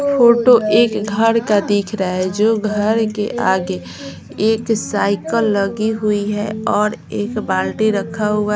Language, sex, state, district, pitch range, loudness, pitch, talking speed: Hindi, female, Bihar, West Champaran, 205-225 Hz, -17 LUFS, 210 Hz, 145 wpm